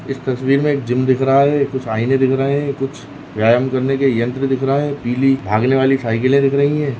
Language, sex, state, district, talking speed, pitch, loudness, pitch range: Hindi, male, Maharashtra, Chandrapur, 230 wpm, 135 Hz, -16 LUFS, 130-140 Hz